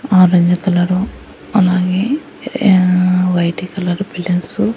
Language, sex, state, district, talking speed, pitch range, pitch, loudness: Telugu, male, Andhra Pradesh, Annamaya, 100 wpm, 180-200 Hz, 185 Hz, -14 LUFS